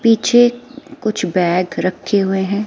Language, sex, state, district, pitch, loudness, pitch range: Hindi, female, Himachal Pradesh, Shimla, 210 Hz, -16 LUFS, 185-240 Hz